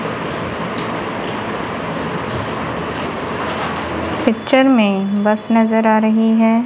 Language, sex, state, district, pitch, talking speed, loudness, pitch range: Hindi, female, Punjab, Kapurthala, 225 Hz, 65 wpm, -17 LUFS, 215-225 Hz